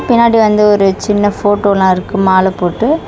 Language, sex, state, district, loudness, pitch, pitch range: Tamil, female, Tamil Nadu, Chennai, -11 LUFS, 205 Hz, 190-210 Hz